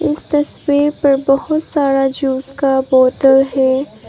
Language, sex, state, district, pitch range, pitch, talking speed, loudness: Hindi, female, Arunachal Pradesh, Papum Pare, 265-290 Hz, 275 Hz, 130 wpm, -14 LUFS